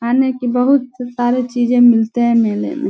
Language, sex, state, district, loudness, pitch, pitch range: Hindi, female, Bihar, Vaishali, -15 LUFS, 245 Hz, 240-255 Hz